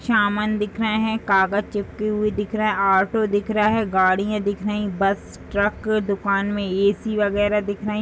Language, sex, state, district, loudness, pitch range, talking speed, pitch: Hindi, female, Uttar Pradesh, Etah, -21 LUFS, 200-215 Hz, 200 wpm, 205 Hz